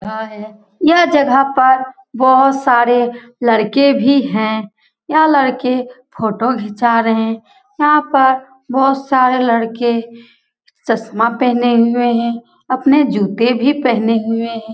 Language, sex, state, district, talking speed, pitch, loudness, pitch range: Hindi, female, Bihar, Lakhisarai, 120 wpm, 245 Hz, -14 LUFS, 230-270 Hz